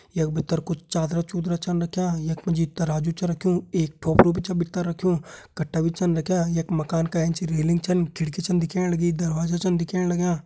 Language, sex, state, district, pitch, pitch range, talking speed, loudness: Hindi, male, Uttarakhand, Uttarkashi, 170 Hz, 165-180 Hz, 210 wpm, -24 LUFS